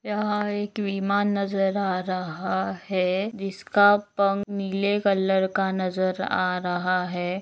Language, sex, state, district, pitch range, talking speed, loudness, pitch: Hindi, female, Maharashtra, Nagpur, 185-205 Hz, 135 wpm, -25 LUFS, 195 Hz